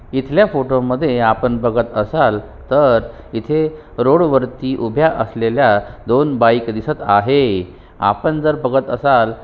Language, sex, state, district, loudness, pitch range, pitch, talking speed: Marathi, male, Maharashtra, Sindhudurg, -16 LUFS, 115-140 Hz, 120 Hz, 125 wpm